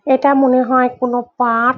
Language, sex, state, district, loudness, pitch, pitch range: Bengali, female, West Bengal, Jhargram, -14 LUFS, 255 Hz, 245-265 Hz